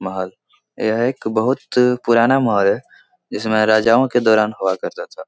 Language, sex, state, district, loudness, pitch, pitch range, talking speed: Hindi, male, Bihar, Jahanabad, -17 LUFS, 115 Hz, 110-135 Hz, 160 wpm